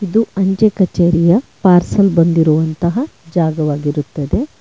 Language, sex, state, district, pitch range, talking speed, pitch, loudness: Kannada, female, Karnataka, Bangalore, 160-200 Hz, 80 wpm, 175 Hz, -14 LUFS